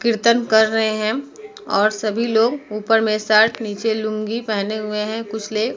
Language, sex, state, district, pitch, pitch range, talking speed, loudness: Hindi, female, Uttar Pradesh, Muzaffarnagar, 220 Hz, 215-230 Hz, 200 wpm, -19 LUFS